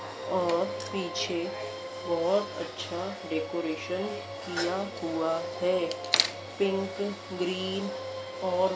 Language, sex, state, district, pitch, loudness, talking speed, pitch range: Hindi, female, Madhya Pradesh, Dhar, 175 Hz, -31 LUFS, 80 wpm, 170-185 Hz